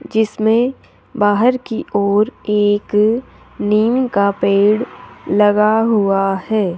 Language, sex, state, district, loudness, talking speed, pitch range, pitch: Hindi, male, Rajasthan, Jaipur, -15 LUFS, 95 wpm, 205-225 Hz, 210 Hz